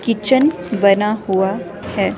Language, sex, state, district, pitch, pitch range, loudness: Hindi, female, Himachal Pradesh, Shimla, 210 Hz, 200-240 Hz, -17 LUFS